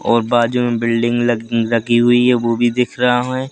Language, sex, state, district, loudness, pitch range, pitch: Hindi, male, Madhya Pradesh, Katni, -15 LUFS, 115-125 Hz, 120 Hz